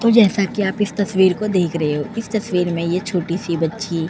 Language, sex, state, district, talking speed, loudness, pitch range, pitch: Hindi, female, Uttar Pradesh, Etah, 265 wpm, -19 LUFS, 170-210 Hz, 190 Hz